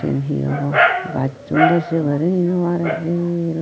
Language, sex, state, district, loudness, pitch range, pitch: Chakma, female, Tripura, Unakoti, -18 LUFS, 135-175 Hz, 165 Hz